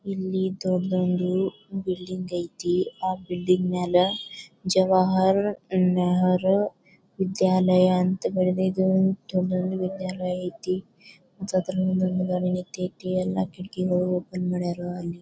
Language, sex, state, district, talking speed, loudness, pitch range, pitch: Kannada, female, Karnataka, Bijapur, 70 wpm, -25 LUFS, 180-190 Hz, 185 Hz